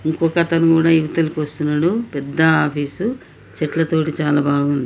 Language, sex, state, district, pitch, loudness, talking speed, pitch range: Telugu, male, Telangana, Nalgonda, 160 Hz, -18 LUFS, 125 wpm, 150-165 Hz